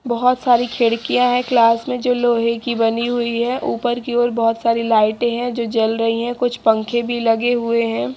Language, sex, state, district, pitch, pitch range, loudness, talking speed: Hindi, female, Haryana, Jhajjar, 235 Hz, 230-245 Hz, -18 LUFS, 215 wpm